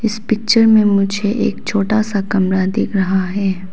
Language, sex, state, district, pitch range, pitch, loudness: Hindi, female, Arunachal Pradesh, Papum Pare, 190-215 Hz, 200 Hz, -15 LUFS